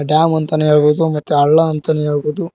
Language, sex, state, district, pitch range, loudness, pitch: Kannada, male, Karnataka, Koppal, 150-160 Hz, -14 LUFS, 155 Hz